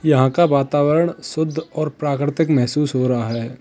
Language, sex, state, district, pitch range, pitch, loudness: Hindi, male, Uttar Pradesh, Lalitpur, 130-155 Hz, 145 Hz, -19 LUFS